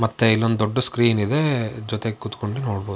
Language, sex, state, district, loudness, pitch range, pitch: Kannada, male, Karnataka, Shimoga, -21 LUFS, 110-120 Hz, 115 Hz